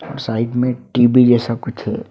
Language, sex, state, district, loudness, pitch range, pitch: Hindi, male, Assam, Hailakandi, -16 LUFS, 120-125 Hz, 120 Hz